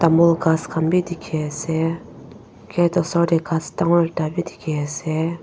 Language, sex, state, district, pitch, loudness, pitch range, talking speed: Nagamese, female, Nagaland, Dimapur, 165 Hz, -21 LUFS, 160-170 Hz, 130 wpm